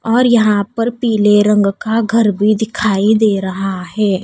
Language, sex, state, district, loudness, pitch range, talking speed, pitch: Hindi, female, Odisha, Nuapada, -14 LUFS, 200-225 Hz, 170 wpm, 210 Hz